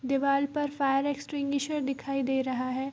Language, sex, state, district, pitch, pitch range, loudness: Hindi, female, Bihar, Gopalganj, 275 Hz, 265-285 Hz, -29 LUFS